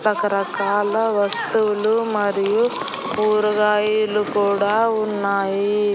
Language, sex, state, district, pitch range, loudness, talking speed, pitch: Telugu, female, Andhra Pradesh, Annamaya, 205-215 Hz, -19 LUFS, 60 wpm, 210 Hz